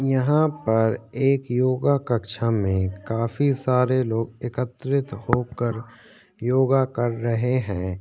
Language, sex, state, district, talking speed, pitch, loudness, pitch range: Hindi, male, Uttarakhand, Tehri Garhwal, 110 wpm, 120 Hz, -23 LUFS, 115-130 Hz